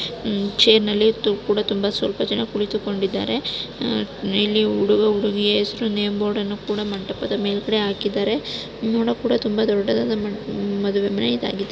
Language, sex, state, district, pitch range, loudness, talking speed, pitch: Kannada, female, Karnataka, Dakshina Kannada, 200-215 Hz, -21 LUFS, 115 wpm, 210 Hz